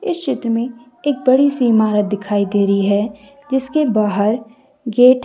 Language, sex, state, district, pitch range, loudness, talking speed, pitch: Hindi, female, Jharkhand, Deoghar, 210-270 Hz, -17 LUFS, 170 wpm, 240 Hz